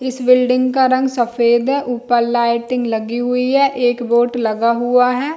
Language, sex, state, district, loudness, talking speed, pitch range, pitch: Hindi, female, Jharkhand, Jamtara, -15 LUFS, 180 wpm, 235-255 Hz, 245 Hz